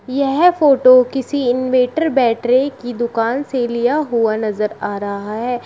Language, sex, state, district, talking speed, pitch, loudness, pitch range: Hindi, female, Uttar Pradesh, Shamli, 150 wpm, 250 Hz, -16 LUFS, 230-270 Hz